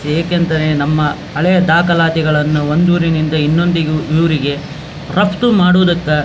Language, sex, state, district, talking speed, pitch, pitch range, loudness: Kannada, male, Karnataka, Dharwad, 105 wpm, 160 Hz, 150-175 Hz, -13 LUFS